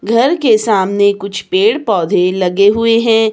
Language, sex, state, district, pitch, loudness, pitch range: Hindi, female, Himachal Pradesh, Shimla, 220 Hz, -12 LUFS, 200-230 Hz